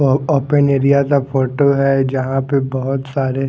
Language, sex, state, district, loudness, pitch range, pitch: Hindi, male, Haryana, Jhajjar, -16 LUFS, 135-140 Hz, 135 Hz